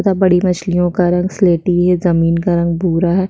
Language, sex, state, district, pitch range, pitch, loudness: Hindi, female, Chhattisgarh, Sukma, 175-185 Hz, 180 Hz, -14 LUFS